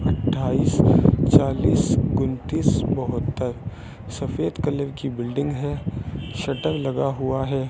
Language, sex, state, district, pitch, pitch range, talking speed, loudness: Hindi, male, Rajasthan, Bikaner, 135 Hz, 130-140 Hz, 100 wpm, -22 LUFS